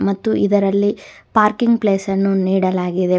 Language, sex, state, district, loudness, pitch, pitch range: Kannada, female, Karnataka, Dakshina Kannada, -17 LUFS, 195 Hz, 190-205 Hz